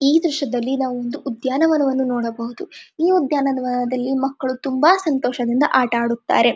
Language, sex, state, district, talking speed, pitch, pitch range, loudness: Kannada, female, Karnataka, Dharwad, 120 wpm, 265 Hz, 245-290 Hz, -19 LUFS